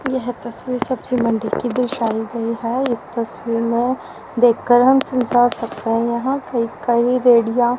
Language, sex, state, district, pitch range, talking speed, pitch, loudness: Hindi, female, Haryana, Rohtak, 230-250 Hz, 155 wpm, 240 Hz, -18 LUFS